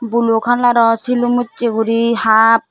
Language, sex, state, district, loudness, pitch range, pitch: Chakma, female, Tripura, Dhalai, -14 LUFS, 225-245 Hz, 235 Hz